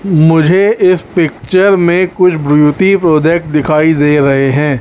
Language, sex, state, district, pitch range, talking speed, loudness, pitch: Hindi, male, Chhattisgarh, Raipur, 150-185 Hz, 135 wpm, -10 LUFS, 160 Hz